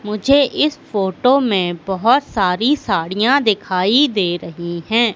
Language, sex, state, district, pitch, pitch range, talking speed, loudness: Hindi, female, Madhya Pradesh, Katni, 210 Hz, 185-260 Hz, 130 wpm, -16 LUFS